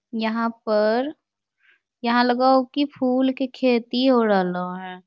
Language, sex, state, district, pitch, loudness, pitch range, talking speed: Magahi, female, Bihar, Lakhisarai, 245 Hz, -21 LUFS, 220-260 Hz, 155 wpm